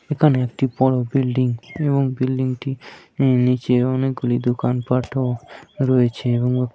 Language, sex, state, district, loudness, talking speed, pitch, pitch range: Bengali, male, West Bengal, Dakshin Dinajpur, -20 LUFS, 135 wpm, 130 Hz, 125-130 Hz